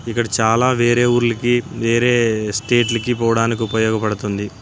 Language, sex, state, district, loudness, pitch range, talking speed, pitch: Telugu, male, Andhra Pradesh, Anantapur, -17 LUFS, 110-120 Hz, 115 wpm, 115 Hz